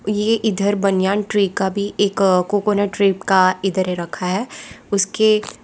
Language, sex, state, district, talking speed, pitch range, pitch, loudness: Hindi, female, Gujarat, Valsad, 160 wpm, 190-205 Hz, 200 Hz, -18 LUFS